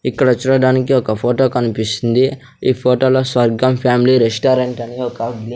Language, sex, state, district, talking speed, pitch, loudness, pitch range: Telugu, male, Andhra Pradesh, Sri Satya Sai, 140 wpm, 125 Hz, -15 LUFS, 120-130 Hz